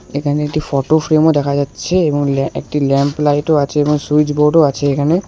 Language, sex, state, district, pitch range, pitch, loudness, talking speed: Bengali, male, West Bengal, Alipurduar, 140-155 Hz, 145 Hz, -14 LUFS, 170 wpm